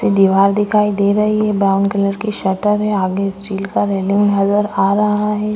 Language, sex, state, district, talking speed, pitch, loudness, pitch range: Hindi, female, Maharashtra, Chandrapur, 195 wpm, 200 Hz, -15 LUFS, 195-210 Hz